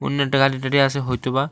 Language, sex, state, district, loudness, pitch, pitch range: Bengali, male, Tripura, West Tripura, -20 LUFS, 135 Hz, 135-140 Hz